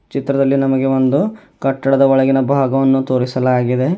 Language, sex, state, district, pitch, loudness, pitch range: Kannada, male, Karnataka, Bidar, 135 Hz, -15 LUFS, 130-135 Hz